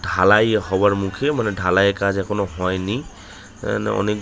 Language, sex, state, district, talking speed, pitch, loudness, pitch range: Bengali, male, West Bengal, Kolkata, 185 wpm, 100 Hz, -19 LUFS, 95-105 Hz